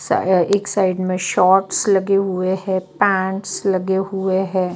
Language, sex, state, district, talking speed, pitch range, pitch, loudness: Hindi, female, Bihar, Katihar, 140 wpm, 185-195 Hz, 190 Hz, -18 LUFS